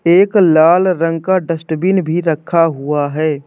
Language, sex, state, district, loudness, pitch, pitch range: Hindi, male, Uttar Pradesh, Hamirpur, -13 LUFS, 165 Hz, 155-180 Hz